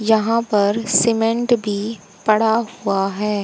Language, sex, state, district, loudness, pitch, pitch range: Hindi, female, Haryana, Charkhi Dadri, -18 LUFS, 215 Hz, 200-225 Hz